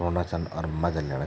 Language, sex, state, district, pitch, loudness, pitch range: Garhwali, male, Uttarakhand, Tehri Garhwal, 85 Hz, -29 LUFS, 80-85 Hz